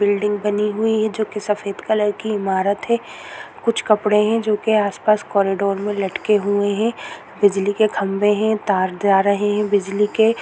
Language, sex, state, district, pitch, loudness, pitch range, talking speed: Hindi, female, Chhattisgarh, Korba, 210 Hz, -19 LUFS, 200-215 Hz, 190 wpm